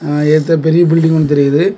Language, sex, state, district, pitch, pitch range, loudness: Tamil, male, Tamil Nadu, Kanyakumari, 160 Hz, 150-165 Hz, -11 LUFS